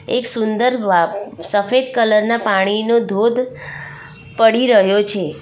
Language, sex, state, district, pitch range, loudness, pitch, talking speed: Gujarati, female, Gujarat, Valsad, 205-240 Hz, -16 LUFS, 220 Hz, 120 wpm